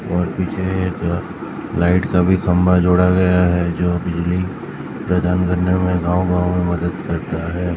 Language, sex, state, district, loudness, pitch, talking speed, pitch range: Hindi, male, Maharashtra, Mumbai Suburban, -18 LUFS, 90 Hz, 160 wpm, 85-90 Hz